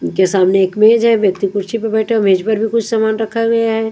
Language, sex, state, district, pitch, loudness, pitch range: Hindi, female, Punjab, Kapurthala, 220 Hz, -14 LUFS, 195-225 Hz